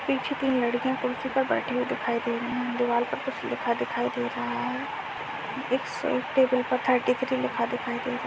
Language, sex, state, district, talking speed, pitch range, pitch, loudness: Hindi, female, Bihar, Begusarai, 215 wpm, 245-260 Hz, 250 Hz, -27 LUFS